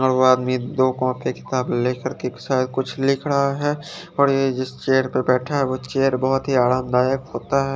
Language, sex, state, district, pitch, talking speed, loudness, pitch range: Hindi, male, Chandigarh, Chandigarh, 130 Hz, 170 wpm, -21 LUFS, 130-135 Hz